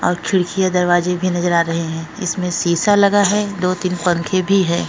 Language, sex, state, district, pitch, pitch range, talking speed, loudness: Hindi, female, Uttar Pradesh, Etah, 180 Hz, 175-190 Hz, 210 wpm, -17 LUFS